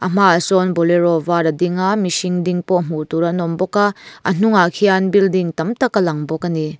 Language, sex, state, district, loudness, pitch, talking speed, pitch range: Mizo, female, Mizoram, Aizawl, -16 LUFS, 180 Hz, 240 wpm, 170-190 Hz